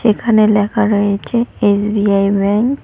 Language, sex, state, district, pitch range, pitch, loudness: Bengali, female, West Bengal, Cooch Behar, 200-220 Hz, 210 Hz, -14 LUFS